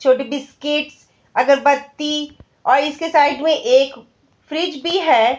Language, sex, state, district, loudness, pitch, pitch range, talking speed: Hindi, female, Bihar, Bhagalpur, -17 LUFS, 295 Hz, 280-320 Hz, 120 wpm